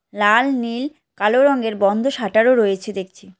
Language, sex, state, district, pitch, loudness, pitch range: Bengali, female, West Bengal, Cooch Behar, 220 Hz, -17 LUFS, 200-255 Hz